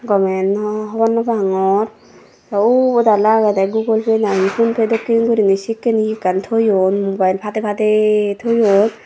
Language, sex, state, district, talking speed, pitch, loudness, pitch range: Chakma, female, Tripura, Dhalai, 160 wpm, 215 Hz, -16 LUFS, 200-225 Hz